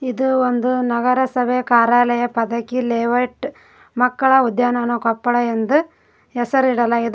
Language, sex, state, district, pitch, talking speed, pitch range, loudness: Kannada, female, Karnataka, Koppal, 245 Hz, 90 wpm, 235-255 Hz, -17 LUFS